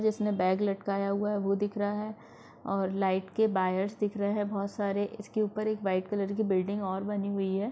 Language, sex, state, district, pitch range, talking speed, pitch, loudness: Hindi, female, Chhattisgarh, Sukma, 195-210 Hz, 235 wpm, 200 Hz, -31 LUFS